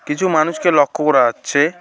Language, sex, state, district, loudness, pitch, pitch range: Bengali, male, West Bengal, Alipurduar, -15 LUFS, 155 Hz, 145-175 Hz